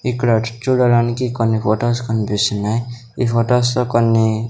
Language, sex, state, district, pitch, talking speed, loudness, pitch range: Telugu, male, Andhra Pradesh, Sri Satya Sai, 115 Hz, 135 wpm, -17 LUFS, 110-120 Hz